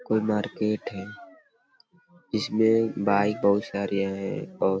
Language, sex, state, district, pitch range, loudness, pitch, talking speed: Hindi, male, Uttar Pradesh, Deoria, 100-145 Hz, -26 LUFS, 105 Hz, 125 wpm